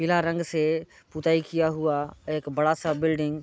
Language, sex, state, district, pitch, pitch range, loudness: Hindi, male, Uttar Pradesh, Jalaun, 160 Hz, 155-165 Hz, -26 LUFS